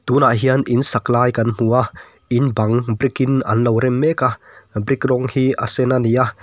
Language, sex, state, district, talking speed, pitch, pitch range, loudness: Mizo, male, Mizoram, Aizawl, 235 wpm, 125 Hz, 120-130 Hz, -17 LUFS